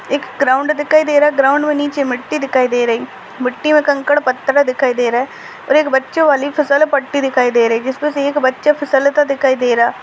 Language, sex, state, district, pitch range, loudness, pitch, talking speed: Hindi, female, Maharashtra, Dhule, 255-290 Hz, -14 LUFS, 275 Hz, 225 wpm